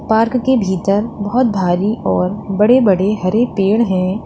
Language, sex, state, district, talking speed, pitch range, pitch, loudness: Hindi, female, Uttar Pradesh, Lalitpur, 155 wpm, 190-230 Hz, 205 Hz, -15 LUFS